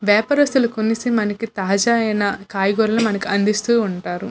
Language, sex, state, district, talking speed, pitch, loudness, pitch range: Telugu, female, Andhra Pradesh, Visakhapatnam, 125 wpm, 215 Hz, -18 LUFS, 200-230 Hz